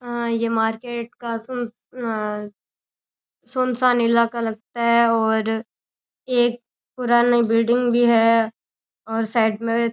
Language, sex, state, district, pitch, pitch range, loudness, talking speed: Rajasthani, female, Rajasthan, Churu, 235 Hz, 225-240 Hz, -21 LUFS, 110 wpm